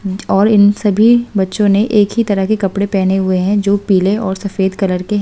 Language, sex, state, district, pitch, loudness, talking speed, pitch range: Hindi, female, Delhi, New Delhi, 200 Hz, -13 LUFS, 220 wpm, 190-210 Hz